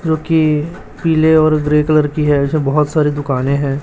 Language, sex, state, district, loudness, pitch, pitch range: Hindi, male, Chhattisgarh, Raipur, -14 LUFS, 150 Hz, 145-155 Hz